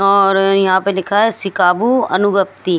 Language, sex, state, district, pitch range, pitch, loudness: Hindi, female, Maharashtra, Gondia, 190-200 Hz, 195 Hz, -14 LUFS